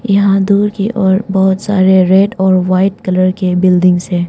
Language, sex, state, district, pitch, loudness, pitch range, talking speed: Hindi, female, Arunachal Pradesh, Longding, 190 Hz, -11 LUFS, 185-200 Hz, 180 wpm